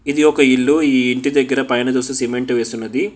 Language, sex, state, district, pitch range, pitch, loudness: Telugu, male, Telangana, Hyderabad, 125-140 Hz, 130 Hz, -16 LUFS